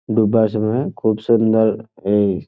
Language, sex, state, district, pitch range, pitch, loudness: Bengali, male, West Bengal, Jhargram, 105-110 Hz, 110 Hz, -17 LUFS